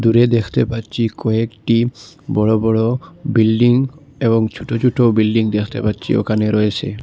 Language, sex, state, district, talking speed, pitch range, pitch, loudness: Bengali, male, Assam, Hailakandi, 130 wpm, 110-120 Hz, 115 Hz, -17 LUFS